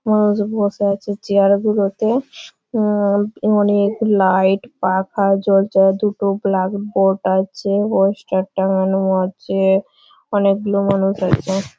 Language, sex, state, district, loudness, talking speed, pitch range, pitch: Bengali, female, West Bengal, Malda, -17 LUFS, 110 wpm, 195-205 Hz, 200 Hz